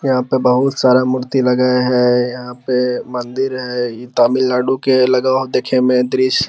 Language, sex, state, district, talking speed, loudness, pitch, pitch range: Magahi, male, Bihar, Lakhisarai, 205 wpm, -15 LUFS, 125 Hz, 125-130 Hz